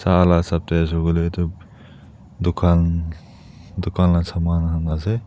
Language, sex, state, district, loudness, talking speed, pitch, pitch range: Nagamese, male, Nagaland, Dimapur, -20 LUFS, 125 wpm, 85 Hz, 85-90 Hz